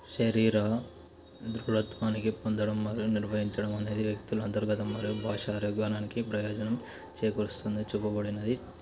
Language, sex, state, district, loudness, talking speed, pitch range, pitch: Telugu, male, Telangana, Nalgonda, -32 LUFS, 90 wpm, 105-110 Hz, 105 Hz